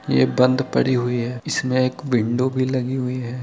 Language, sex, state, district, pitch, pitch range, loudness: Hindi, male, Bihar, Araria, 125 Hz, 125-130 Hz, -21 LUFS